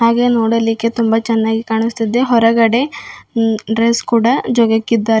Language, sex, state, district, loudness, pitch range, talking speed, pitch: Kannada, female, Karnataka, Bidar, -14 LUFS, 225-235 Hz, 115 wpm, 230 Hz